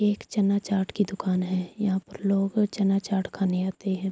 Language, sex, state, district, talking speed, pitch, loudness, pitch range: Urdu, female, Andhra Pradesh, Anantapur, 205 wpm, 195 Hz, -26 LUFS, 190-200 Hz